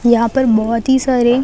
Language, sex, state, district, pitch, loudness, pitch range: Hindi, female, Chhattisgarh, Bilaspur, 240 Hz, -14 LUFS, 230-265 Hz